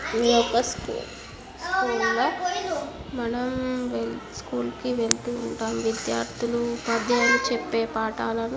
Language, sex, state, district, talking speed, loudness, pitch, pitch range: Telugu, female, Andhra Pradesh, Visakhapatnam, 85 wpm, -25 LUFS, 235 Hz, 225-255 Hz